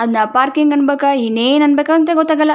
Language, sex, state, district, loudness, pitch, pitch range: Kannada, female, Karnataka, Chamarajanagar, -13 LUFS, 285 Hz, 255-305 Hz